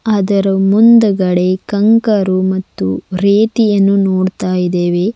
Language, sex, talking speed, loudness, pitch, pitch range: Kannada, female, 80 wpm, -12 LUFS, 195 Hz, 185-210 Hz